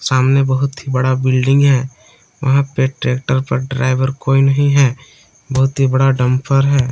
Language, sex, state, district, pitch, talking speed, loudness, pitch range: Hindi, male, Jharkhand, Palamu, 135 Hz, 155 wpm, -15 LUFS, 130-135 Hz